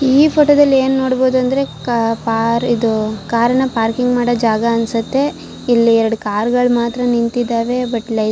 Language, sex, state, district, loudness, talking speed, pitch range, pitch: Kannada, female, Karnataka, Shimoga, -15 LUFS, 160 wpm, 230-255 Hz, 235 Hz